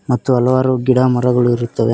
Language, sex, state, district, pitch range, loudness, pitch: Kannada, male, Karnataka, Koppal, 120-130 Hz, -14 LUFS, 125 Hz